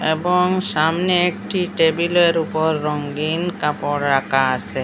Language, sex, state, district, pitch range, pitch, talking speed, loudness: Bengali, female, Assam, Hailakandi, 150-175 Hz, 160 Hz, 125 wpm, -19 LUFS